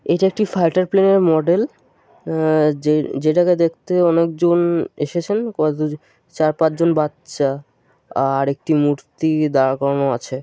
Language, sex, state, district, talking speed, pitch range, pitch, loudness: Bengali, male, West Bengal, Jalpaiguri, 145 wpm, 145-175 Hz, 160 Hz, -18 LUFS